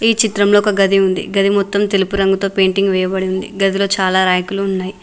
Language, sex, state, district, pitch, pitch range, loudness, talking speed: Telugu, female, Telangana, Mahabubabad, 195 Hz, 190-200 Hz, -15 LUFS, 190 wpm